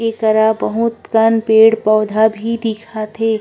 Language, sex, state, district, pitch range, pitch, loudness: Chhattisgarhi, female, Chhattisgarh, Korba, 220-225 Hz, 220 Hz, -14 LUFS